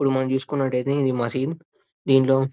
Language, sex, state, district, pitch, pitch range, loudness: Telugu, male, Telangana, Karimnagar, 135 Hz, 130-140 Hz, -22 LUFS